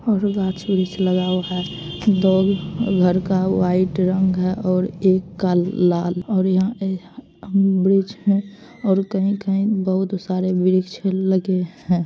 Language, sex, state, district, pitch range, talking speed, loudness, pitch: Maithili, female, Bihar, Madhepura, 185-195 Hz, 160 wpm, -20 LUFS, 190 Hz